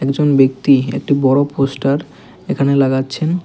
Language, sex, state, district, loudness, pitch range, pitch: Bengali, male, Tripura, West Tripura, -15 LUFS, 135-145 Hz, 140 Hz